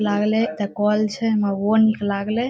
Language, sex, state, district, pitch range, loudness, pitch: Maithili, female, Bihar, Saharsa, 205-220 Hz, -20 LUFS, 210 Hz